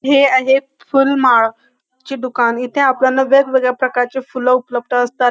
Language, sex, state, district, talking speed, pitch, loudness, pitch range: Marathi, female, Maharashtra, Dhule, 135 wpm, 255 Hz, -15 LUFS, 245-270 Hz